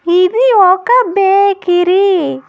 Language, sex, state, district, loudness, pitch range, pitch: Telugu, female, Andhra Pradesh, Annamaya, -10 LUFS, 355-400 Hz, 385 Hz